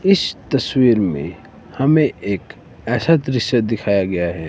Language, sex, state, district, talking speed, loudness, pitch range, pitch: Hindi, male, Himachal Pradesh, Shimla, 135 wpm, -18 LUFS, 95-135 Hz, 115 Hz